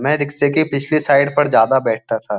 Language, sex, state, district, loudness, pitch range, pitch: Hindi, male, Uttar Pradesh, Jyotiba Phule Nagar, -15 LUFS, 140-150 Hz, 145 Hz